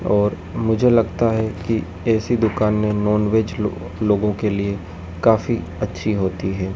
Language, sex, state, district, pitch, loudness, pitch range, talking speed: Hindi, male, Madhya Pradesh, Dhar, 105 Hz, -20 LUFS, 95-110 Hz, 140 wpm